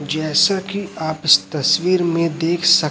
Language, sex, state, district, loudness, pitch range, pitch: Hindi, male, Chhattisgarh, Raipur, -17 LUFS, 155-180 Hz, 165 Hz